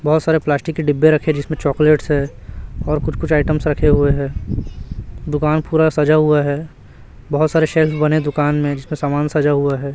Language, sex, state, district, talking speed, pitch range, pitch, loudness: Hindi, male, Chhattisgarh, Raipur, 205 wpm, 140-155 Hz, 150 Hz, -17 LUFS